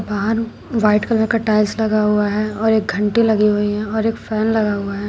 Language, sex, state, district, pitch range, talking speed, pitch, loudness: Hindi, female, Uttar Pradesh, Shamli, 210-220 Hz, 235 wpm, 215 Hz, -17 LUFS